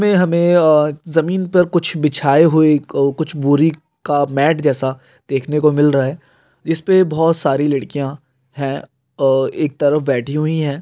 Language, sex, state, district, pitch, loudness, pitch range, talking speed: Hindi, male, Rajasthan, Nagaur, 150 Hz, -16 LUFS, 140-160 Hz, 170 wpm